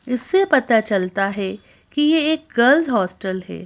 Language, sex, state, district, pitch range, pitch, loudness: Hindi, female, Madhya Pradesh, Bhopal, 195-300 Hz, 235 Hz, -18 LUFS